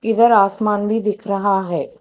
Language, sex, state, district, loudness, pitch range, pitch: Hindi, female, Telangana, Hyderabad, -17 LUFS, 200-225 Hz, 210 Hz